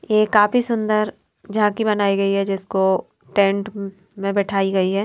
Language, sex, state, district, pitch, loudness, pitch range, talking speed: Hindi, female, Maharashtra, Mumbai Suburban, 200 Hz, -20 LUFS, 195-215 Hz, 155 wpm